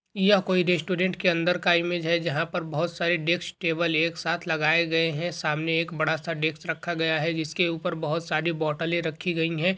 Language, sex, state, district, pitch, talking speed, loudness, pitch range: Hindi, male, West Bengal, Kolkata, 170 Hz, 215 wpm, -25 LUFS, 160-175 Hz